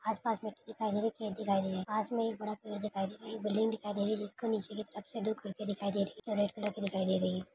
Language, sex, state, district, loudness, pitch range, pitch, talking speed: Hindi, female, Maharashtra, Dhule, -36 LUFS, 200-220 Hz, 210 Hz, 320 wpm